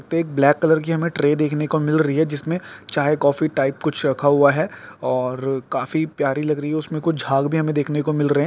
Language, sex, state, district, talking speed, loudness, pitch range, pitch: Hindi, male, Uttarakhand, Tehri Garhwal, 255 wpm, -20 LUFS, 145-155 Hz, 150 Hz